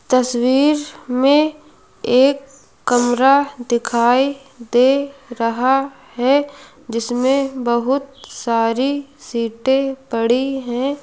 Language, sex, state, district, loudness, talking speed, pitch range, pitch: Hindi, female, Uttar Pradesh, Lucknow, -17 LUFS, 75 wpm, 245-275 Hz, 265 Hz